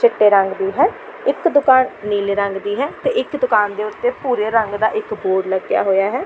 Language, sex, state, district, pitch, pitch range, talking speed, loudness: Punjabi, female, Delhi, New Delhi, 215 Hz, 200-260 Hz, 220 wpm, -17 LUFS